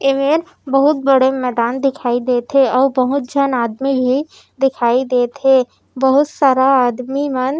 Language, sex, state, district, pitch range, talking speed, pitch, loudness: Chhattisgarhi, female, Chhattisgarh, Raigarh, 250-275 Hz, 160 wpm, 265 Hz, -15 LUFS